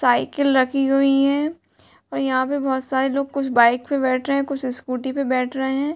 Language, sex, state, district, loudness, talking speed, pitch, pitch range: Hindi, female, Uttar Pradesh, Hamirpur, -20 LUFS, 210 wpm, 270 Hz, 260-275 Hz